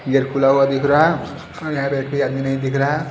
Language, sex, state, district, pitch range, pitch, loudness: Hindi, male, Haryana, Rohtak, 135-145 Hz, 140 Hz, -18 LUFS